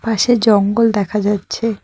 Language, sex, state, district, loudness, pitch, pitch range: Bengali, female, West Bengal, Cooch Behar, -15 LUFS, 215 Hz, 205-230 Hz